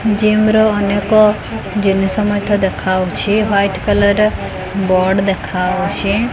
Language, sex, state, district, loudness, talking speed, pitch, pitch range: Odia, female, Odisha, Khordha, -14 LUFS, 85 wpm, 205 Hz, 190-210 Hz